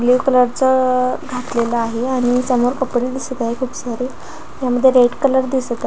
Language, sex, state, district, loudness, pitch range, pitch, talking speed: Marathi, female, Maharashtra, Pune, -17 LUFS, 245-260 Hz, 250 Hz, 145 wpm